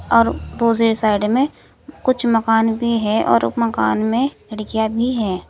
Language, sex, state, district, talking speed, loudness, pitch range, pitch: Hindi, female, Uttar Pradesh, Saharanpur, 165 wpm, -17 LUFS, 210-230 Hz, 225 Hz